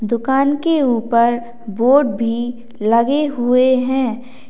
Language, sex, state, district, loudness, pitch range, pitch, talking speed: Hindi, female, Uttar Pradesh, Lalitpur, -16 LUFS, 235-265 Hz, 245 Hz, 105 wpm